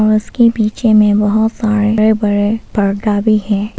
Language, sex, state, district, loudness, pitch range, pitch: Hindi, female, Arunachal Pradesh, Papum Pare, -13 LUFS, 210-220 Hz, 215 Hz